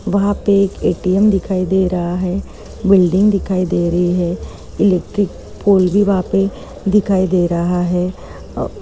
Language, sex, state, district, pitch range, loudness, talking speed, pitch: Hindi, female, Maharashtra, Chandrapur, 180-200 Hz, -16 LUFS, 155 wpm, 185 Hz